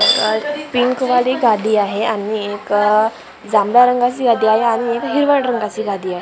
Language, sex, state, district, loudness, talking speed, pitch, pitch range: Marathi, female, Maharashtra, Gondia, -16 LUFS, 165 wpm, 220 Hz, 210-245 Hz